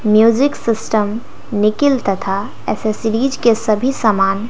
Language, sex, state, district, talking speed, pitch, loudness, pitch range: Hindi, female, Bihar, West Champaran, 105 wpm, 220 Hz, -16 LUFS, 210-240 Hz